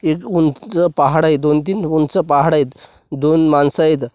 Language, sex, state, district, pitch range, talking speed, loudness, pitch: Marathi, male, Maharashtra, Washim, 145-165 Hz, 175 wpm, -15 LUFS, 155 Hz